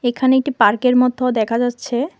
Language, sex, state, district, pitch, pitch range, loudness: Bengali, female, Tripura, West Tripura, 250 Hz, 240-260 Hz, -16 LUFS